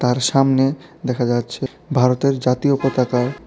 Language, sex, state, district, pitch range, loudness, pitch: Bengali, male, Tripura, West Tripura, 125-135 Hz, -19 LUFS, 130 Hz